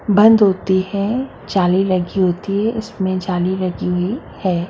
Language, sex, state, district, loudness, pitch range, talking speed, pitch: Hindi, female, Maharashtra, Mumbai Suburban, -17 LUFS, 185-205 Hz, 140 wpm, 190 Hz